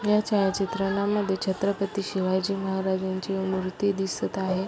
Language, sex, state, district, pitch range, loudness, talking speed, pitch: Marathi, female, Maharashtra, Aurangabad, 190-200 Hz, -27 LUFS, 115 wpm, 195 Hz